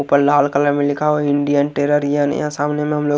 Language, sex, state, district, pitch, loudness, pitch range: Hindi, male, Haryana, Rohtak, 145 Hz, -17 LUFS, 145-150 Hz